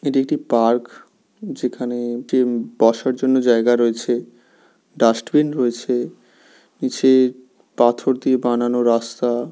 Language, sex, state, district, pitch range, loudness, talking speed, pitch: Bengali, male, West Bengal, Paschim Medinipur, 120-130 Hz, -19 LUFS, 105 wpm, 120 Hz